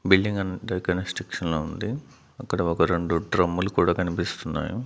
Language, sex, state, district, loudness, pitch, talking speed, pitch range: Telugu, male, Andhra Pradesh, Manyam, -25 LUFS, 90 Hz, 125 wpm, 85-100 Hz